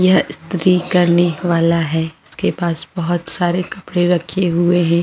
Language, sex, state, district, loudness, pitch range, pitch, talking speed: Hindi, female, Chhattisgarh, Jashpur, -17 LUFS, 165-180 Hz, 175 Hz, 155 wpm